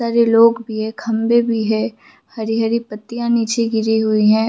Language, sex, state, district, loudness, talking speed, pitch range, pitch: Hindi, female, Jharkhand, Sahebganj, -17 LUFS, 175 wpm, 220-235 Hz, 225 Hz